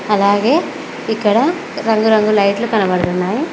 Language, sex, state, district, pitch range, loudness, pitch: Telugu, female, Telangana, Mahabubabad, 200-235 Hz, -15 LUFS, 215 Hz